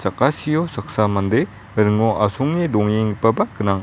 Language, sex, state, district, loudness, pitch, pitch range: Garo, male, Meghalaya, West Garo Hills, -19 LUFS, 110 Hz, 105-130 Hz